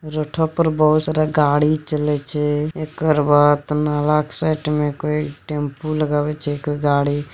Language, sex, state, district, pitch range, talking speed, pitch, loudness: Hindi, male, Bihar, Araria, 145-155 Hz, 155 wpm, 150 Hz, -19 LUFS